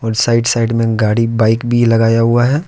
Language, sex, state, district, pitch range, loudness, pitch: Hindi, male, Jharkhand, Deoghar, 115-120 Hz, -13 LUFS, 115 Hz